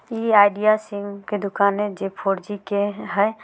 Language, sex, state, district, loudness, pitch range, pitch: Maithili, female, Bihar, Samastipur, -21 LUFS, 200-210 Hz, 205 Hz